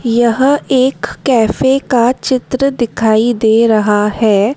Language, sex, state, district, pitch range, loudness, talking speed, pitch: Hindi, female, Madhya Pradesh, Dhar, 220-260 Hz, -12 LUFS, 120 wpm, 235 Hz